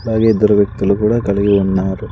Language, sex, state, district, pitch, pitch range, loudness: Telugu, male, Andhra Pradesh, Sri Satya Sai, 105 Hz, 100-110 Hz, -14 LUFS